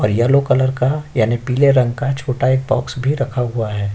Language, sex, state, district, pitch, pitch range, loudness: Hindi, male, Uttar Pradesh, Jyotiba Phule Nagar, 130 Hz, 120-135 Hz, -17 LUFS